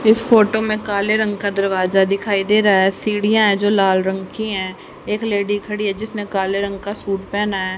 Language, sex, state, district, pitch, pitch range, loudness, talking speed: Hindi, female, Haryana, Charkhi Dadri, 205 Hz, 195-215 Hz, -18 LUFS, 225 wpm